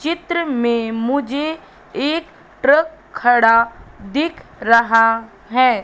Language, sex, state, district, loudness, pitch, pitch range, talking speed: Hindi, female, Madhya Pradesh, Katni, -17 LUFS, 255 Hz, 230-315 Hz, 90 wpm